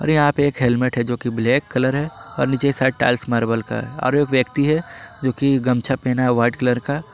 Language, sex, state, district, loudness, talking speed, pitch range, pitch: Hindi, male, Jharkhand, Palamu, -19 LUFS, 245 wpm, 120-140 Hz, 125 Hz